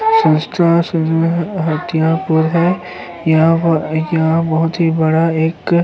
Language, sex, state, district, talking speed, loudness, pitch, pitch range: Hindi, male, Uttar Pradesh, Hamirpur, 115 wpm, -15 LUFS, 165 Hz, 160-170 Hz